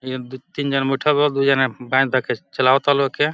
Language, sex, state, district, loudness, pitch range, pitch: Hindi, male, Uttar Pradesh, Deoria, -19 LUFS, 130-140 Hz, 135 Hz